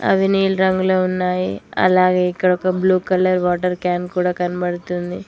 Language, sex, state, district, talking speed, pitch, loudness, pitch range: Telugu, female, Telangana, Mahabubabad, 100 wpm, 180 Hz, -18 LUFS, 180-185 Hz